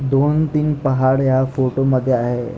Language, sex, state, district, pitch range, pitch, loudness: Marathi, male, Maharashtra, Pune, 130-140 Hz, 130 Hz, -17 LUFS